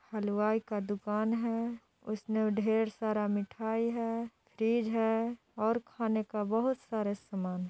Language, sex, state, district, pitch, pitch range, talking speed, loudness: Hindi, female, Bihar, Jahanabad, 220 Hz, 210-230 Hz, 130 wpm, -33 LUFS